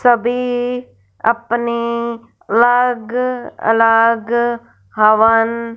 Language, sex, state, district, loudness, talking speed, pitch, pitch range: Hindi, female, Punjab, Fazilka, -15 LUFS, 50 wpm, 235 Hz, 225-240 Hz